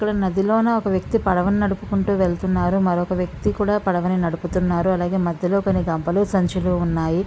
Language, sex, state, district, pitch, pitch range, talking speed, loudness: Telugu, female, Andhra Pradesh, Visakhapatnam, 185 Hz, 175-200 Hz, 150 wpm, -20 LUFS